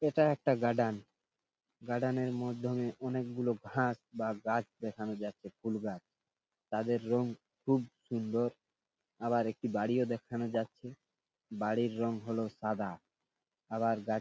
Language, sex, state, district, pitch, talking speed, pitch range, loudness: Bengali, male, West Bengal, Purulia, 115 Hz, 135 wpm, 110-125 Hz, -35 LUFS